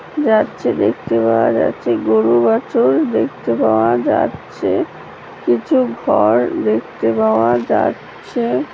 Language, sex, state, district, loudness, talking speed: Bengali, female, West Bengal, Purulia, -16 LUFS, 95 wpm